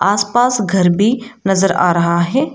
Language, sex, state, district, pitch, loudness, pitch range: Hindi, female, Arunachal Pradesh, Lower Dibang Valley, 200 Hz, -14 LUFS, 180-240 Hz